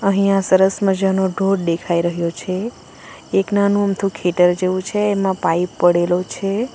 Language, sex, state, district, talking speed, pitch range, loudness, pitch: Gujarati, female, Gujarat, Valsad, 150 wpm, 175-195 Hz, -18 LUFS, 190 Hz